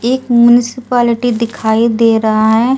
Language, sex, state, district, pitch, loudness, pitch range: Hindi, female, Delhi, New Delhi, 235 Hz, -11 LUFS, 225-245 Hz